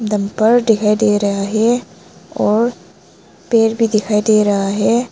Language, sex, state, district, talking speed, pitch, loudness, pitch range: Hindi, female, Arunachal Pradesh, Lower Dibang Valley, 130 wpm, 215 Hz, -15 LUFS, 200-225 Hz